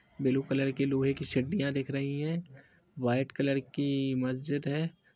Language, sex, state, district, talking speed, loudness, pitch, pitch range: Hindi, male, Bihar, East Champaran, 165 wpm, -31 LUFS, 135 Hz, 135-140 Hz